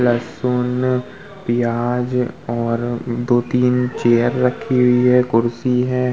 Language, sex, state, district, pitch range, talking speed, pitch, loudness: Hindi, male, Uttar Pradesh, Muzaffarnagar, 120-125 Hz, 100 wpm, 125 Hz, -18 LUFS